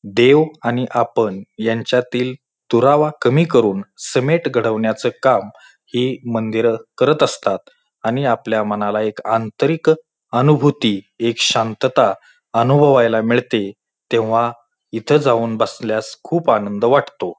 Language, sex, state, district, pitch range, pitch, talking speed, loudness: Marathi, male, Maharashtra, Pune, 110-130 Hz, 115 Hz, 105 wpm, -17 LUFS